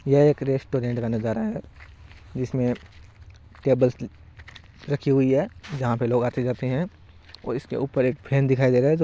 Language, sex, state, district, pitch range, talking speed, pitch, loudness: Marwari, male, Rajasthan, Nagaur, 95-135 Hz, 185 wpm, 125 Hz, -24 LUFS